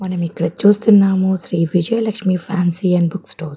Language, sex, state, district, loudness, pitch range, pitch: Telugu, female, Andhra Pradesh, Guntur, -16 LUFS, 170-200 Hz, 185 Hz